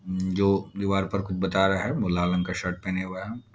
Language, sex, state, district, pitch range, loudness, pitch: Hindi, male, Bihar, Darbhanga, 95-100 Hz, -26 LUFS, 95 Hz